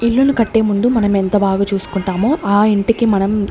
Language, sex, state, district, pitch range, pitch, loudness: Telugu, female, Andhra Pradesh, Sri Satya Sai, 195-230 Hz, 205 Hz, -15 LUFS